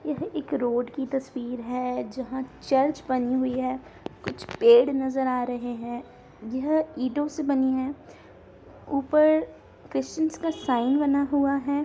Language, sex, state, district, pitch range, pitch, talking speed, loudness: Hindi, female, Bihar, Darbhanga, 255-290 Hz, 270 Hz, 145 wpm, -26 LUFS